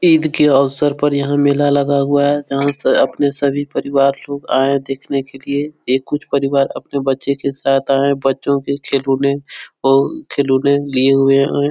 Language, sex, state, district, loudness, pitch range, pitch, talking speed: Hindi, male, Bihar, Jahanabad, -16 LUFS, 135-145 Hz, 140 Hz, 185 wpm